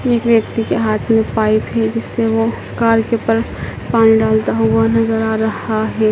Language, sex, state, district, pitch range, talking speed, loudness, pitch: Hindi, male, Madhya Pradesh, Dhar, 220-230 Hz, 185 wpm, -15 LUFS, 225 Hz